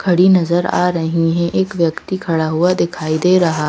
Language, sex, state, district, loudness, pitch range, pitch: Hindi, female, Madhya Pradesh, Bhopal, -15 LUFS, 165-180 Hz, 170 Hz